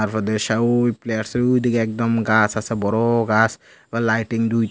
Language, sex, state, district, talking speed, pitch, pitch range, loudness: Bengali, male, Tripura, Unakoti, 155 wpm, 115 Hz, 110-115 Hz, -20 LUFS